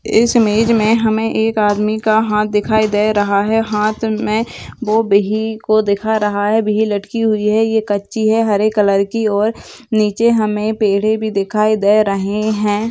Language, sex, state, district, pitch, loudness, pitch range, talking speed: Hindi, female, Maharashtra, Aurangabad, 215 Hz, -15 LUFS, 210-220 Hz, 165 wpm